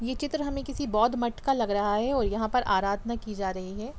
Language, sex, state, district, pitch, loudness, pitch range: Hindi, female, Jharkhand, Jamtara, 230 Hz, -28 LUFS, 205-270 Hz